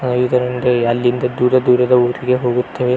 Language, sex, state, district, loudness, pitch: Kannada, male, Karnataka, Belgaum, -15 LUFS, 125 Hz